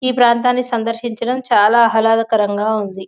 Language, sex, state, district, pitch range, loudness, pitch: Telugu, female, Telangana, Nalgonda, 215-240 Hz, -15 LUFS, 230 Hz